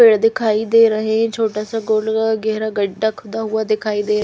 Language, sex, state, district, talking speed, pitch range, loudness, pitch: Hindi, female, Chhattisgarh, Raipur, 200 wpm, 215-225 Hz, -18 LUFS, 220 Hz